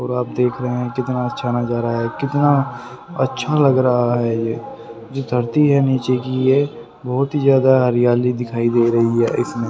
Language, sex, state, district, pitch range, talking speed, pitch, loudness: Hindi, male, Haryana, Rohtak, 120-130 Hz, 185 wpm, 125 Hz, -18 LUFS